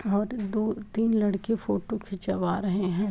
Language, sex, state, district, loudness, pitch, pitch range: Hindi, female, Uttar Pradesh, Jalaun, -28 LUFS, 205 Hz, 195-220 Hz